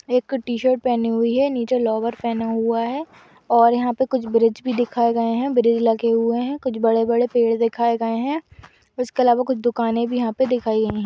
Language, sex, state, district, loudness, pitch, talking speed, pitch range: Hindi, female, Uttar Pradesh, Budaun, -20 LUFS, 235 Hz, 220 wpm, 230-250 Hz